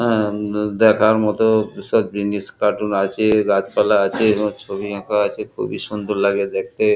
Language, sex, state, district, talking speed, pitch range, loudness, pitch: Bengali, male, West Bengal, Kolkata, 155 wpm, 100-110 Hz, -18 LUFS, 105 Hz